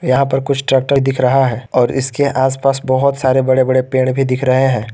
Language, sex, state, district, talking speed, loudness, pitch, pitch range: Hindi, male, Jharkhand, Garhwa, 240 wpm, -14 LUFS, 130 Hz, 130-135 Hz